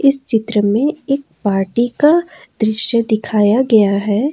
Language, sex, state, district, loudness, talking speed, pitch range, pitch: Hindi, female, Jharkhand, Ranchi, -15 LUFS, 140 wpm, 210-275 Hz, 225 Hz